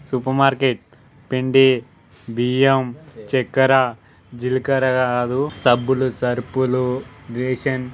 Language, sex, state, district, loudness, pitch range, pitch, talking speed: Telugu, male, Telangana, Karimnagar, -19 LUFS, 125-130 Hz, 130 Hz, 85 wpm